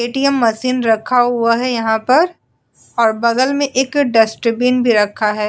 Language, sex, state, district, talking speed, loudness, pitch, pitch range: Hindi, female, Uttar Pradesh, Budaun, 165 wpm, -15 LUFS, 235 Hz, 225-255 Hz